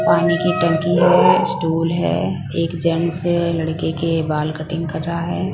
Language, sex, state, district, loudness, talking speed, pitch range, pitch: Hindi, female, Punjab, Pathankot, -18 LUFS, 160 wpm, 160-170 Hz, 165 Hz